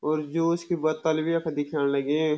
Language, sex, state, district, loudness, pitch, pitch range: Garhwali, male, Uttarakhand, Uttarkashi, -26 LUFS, 155 Hz, 150-165 Hz